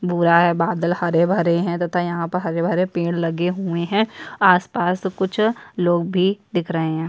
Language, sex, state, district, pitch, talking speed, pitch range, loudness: Hindi, female, Chhattisgarh, Bastar, 175 Hz, 220 wpm, 170-185 Hz, -20 LUFS